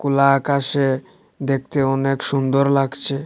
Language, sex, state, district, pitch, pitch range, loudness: Bengali, male, Assam, Hailakandi, 135 Hz, 135-140 Hz, -19 LUFS